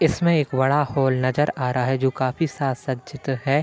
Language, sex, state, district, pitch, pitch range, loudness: Hindi, male, Uttar Pradesh, Hamirpur, 135 Hz, 130-145 Hz, -22 LUFS